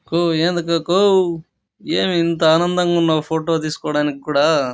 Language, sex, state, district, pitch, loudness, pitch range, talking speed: Telugu, male, Andhra Pradesh, Chittoor, 165 Hz, -17 LUFS, 155-175 Hz, 140 wpm